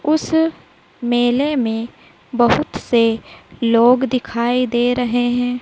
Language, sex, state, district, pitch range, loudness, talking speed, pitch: Hindi, female, Madhya Pradesh, Dhar, 240-255 Hz, -17 LUFS, 105 wpm, 245 Hz